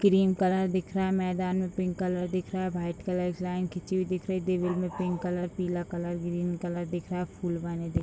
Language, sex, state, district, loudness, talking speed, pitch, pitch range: Hindi, female, Bihar, Purnia, -30 LUFS, 270 wpm, 180 Hz, 175-185 Hz